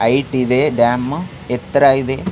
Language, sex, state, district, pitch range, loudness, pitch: Kannada, male, Karnataka, Raichur, 125-140 Hz, -16 LUFS, 130 Hz